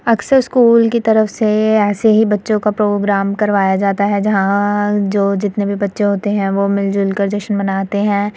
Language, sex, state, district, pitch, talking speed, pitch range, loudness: Hindi, female, Uttar Pradesh, Muzaffarnagar, 205 Hz, 185 wpm, 200-215 Hz, -14 LUFS